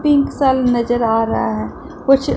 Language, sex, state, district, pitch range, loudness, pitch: Hindi, female, Punjab, Pathankot, 225-275 Hz, -16 LUFS, 240 Hz